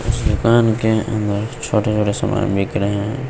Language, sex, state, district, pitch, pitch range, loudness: Hindi, female, Bihar, West Champaran, 110 Hz, 105-115 Hz, -18 LUFS